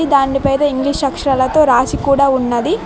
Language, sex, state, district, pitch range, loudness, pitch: Telugu, female, Telangana, Mahabubabad, 270-285 Hz, -14 LUFS, 275 Hz